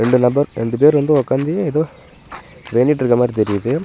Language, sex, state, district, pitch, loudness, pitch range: Tamil, male, Tamil Nadu, Namakkal, 135 Hz, -16 LUFS, 120-150 Hz